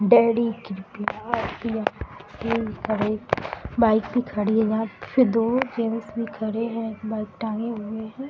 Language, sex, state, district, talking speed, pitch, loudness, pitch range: Hindi, female, Bihar, Gaya, 125 wpm, 225 Hz, -25 LUFS, 215-230 Hz